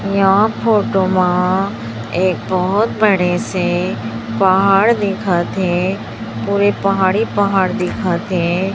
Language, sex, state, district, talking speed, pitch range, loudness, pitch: Hindi, male, Chhattisgarh, Raipur, 105 wpm, 175-200 Hz, -16 LUFS, 190 Hz